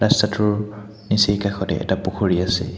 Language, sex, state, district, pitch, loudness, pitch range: Assamese, male, Assam, Hailakandi, 105 Hz, -20 LUFS, 95-105 Hz